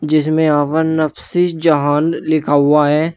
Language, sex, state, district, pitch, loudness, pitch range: Hindi, male, Uttar Pradesh, Shamli, 155 Hz, -15 LUFS, 150-160 Hz